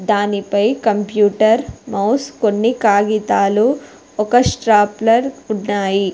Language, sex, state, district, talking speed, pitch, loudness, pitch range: Telugu, female, Telangana, Hyderabad, 80 wpm, 215 Hz, -16 LUFS, 205-230 Hz